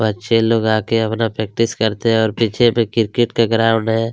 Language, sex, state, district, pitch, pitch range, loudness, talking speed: Hindi, male, Chhattisgarh, Kabirdham, 115 Hz, 110-115 Hz, -16 LUFS, 190 wpm